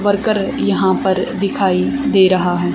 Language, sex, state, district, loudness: Hindi, female, Haryana, Charkhi Dadri, -15 LUFS